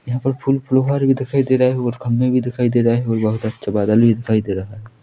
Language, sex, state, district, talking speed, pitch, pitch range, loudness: Hindi, male, Chhattisgarh, Korba, 300 wpm, 120 Hz, 110-130 Hz, -18 LUFS